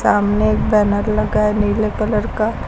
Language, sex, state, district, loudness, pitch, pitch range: Hindi, female, Uttar Pradesh, Lucknow, -17 LUFS, 210 Hz, 205-215 Hz